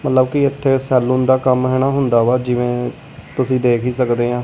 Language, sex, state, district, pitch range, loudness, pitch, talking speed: Punjabi, male, Punjab, Kapurthala, 125-130 Hz, -16 LUFS, 130 Hz, 200 wpm